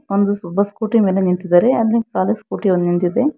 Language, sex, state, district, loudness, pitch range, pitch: Kannada, female, Karnataka, Bangalore, -17 LUFS, 180-225 Hz, 200 Hz